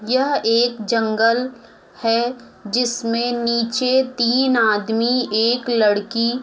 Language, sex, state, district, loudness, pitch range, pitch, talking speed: Hindi, female, Uttar Pradesh, Muzaffarnagar, -18 LUFS, 225-245 Hz, 235 Hz, 95 wpm